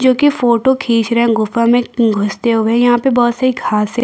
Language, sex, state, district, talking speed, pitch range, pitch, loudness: Hindi, female, Chhattisgarh, Bastar, 235 wpm, 230-245 Hz, 235 Hz, -13 LUFS